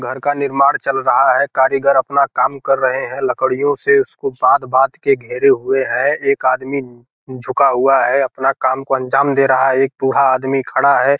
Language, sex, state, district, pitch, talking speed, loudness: Hindi, male, Bihar, Gopalganj, 140 Hz, 210 wpm, -15 LUFS